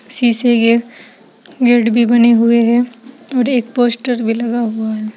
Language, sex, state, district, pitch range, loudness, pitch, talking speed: Hindi, female, Uttar Pradesh, Saharanpur, 230-245 Hz, -13 LUFS, 235 Hz, 160 wpm